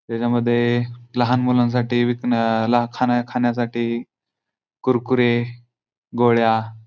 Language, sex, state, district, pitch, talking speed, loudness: Marathi, male, Maharashtra, Pune, 120 Hz, 85 wpm, -20 LUFS